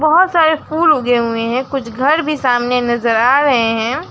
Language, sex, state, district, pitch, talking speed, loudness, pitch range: Hindi, female, West Bengal, Alipurduar, 255 Hz, 205 wpm, -14 LUFS, 240-310 Hz